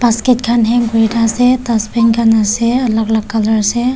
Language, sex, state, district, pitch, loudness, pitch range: Nagamese, female, Nagaland, Kohima, 230 Hz, -13 LUFS, 220-240 Hz